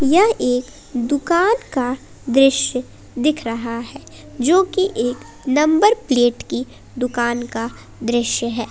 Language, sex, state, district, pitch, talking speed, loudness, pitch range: Hindi, female, Jharkhand, Palamu, 255 Hz, 125 wpm, -19 LUFS, 240-300 Hz